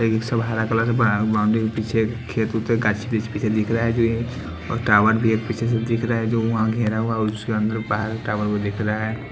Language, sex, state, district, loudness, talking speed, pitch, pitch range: Hindi, male, Haryana, Jhajjar, -22 LUFS, 265 wpm, 110 Hz, 110-115 Hz